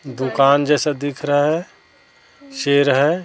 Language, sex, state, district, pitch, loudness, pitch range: Hindi, male, Chhattisgarh, Raipur, 145 Hz, -17 LUFS, 140-155 Hz